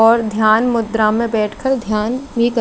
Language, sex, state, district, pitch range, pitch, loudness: Hindi, female, Chandigarh, Chandigarh, 215-235 Hz, 225 Hz, -16 LUFS